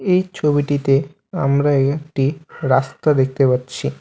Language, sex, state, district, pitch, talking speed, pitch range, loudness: Bengali, male, West Bengal, Alipurduar, 140 Hz, 105 wpm, 135-150 Hz, -18 LUFS